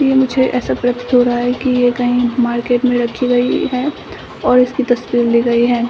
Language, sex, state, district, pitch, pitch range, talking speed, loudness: Hindi, female, Bihar, Samastipur, 245 Hz, 240-250 Hz, 215 wpm, -15 LUFS